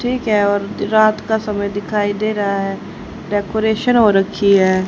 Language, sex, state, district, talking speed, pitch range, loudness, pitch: Hindi, female, Haryana, Rohtak, 170 wpm, 200-215 Hz, -16 LUFS, 205 Hz